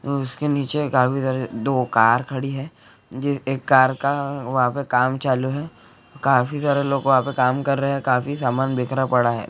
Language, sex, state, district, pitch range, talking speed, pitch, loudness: Hindi, male, Chhattisgarh, Bilaspur, 125-140 Hz, 190 wpm, 130 Hz, -21 LUFS